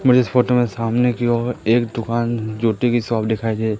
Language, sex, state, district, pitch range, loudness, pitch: Hindi, male, Madhya Pradesh, Katni, 115-120 Hz, -19 LUFS, 120 Hz